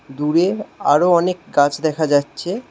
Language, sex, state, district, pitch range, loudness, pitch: Bengali, male, West Bengal, Alipurduar, 145-180 Hz, -18 LUFS, 160 Hz